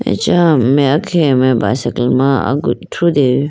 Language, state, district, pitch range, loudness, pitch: Idu Mishmi, Arunachal Pradesh, Lower Dibang Valley, 130-150 Hz, -13 LUFS, 135 Hz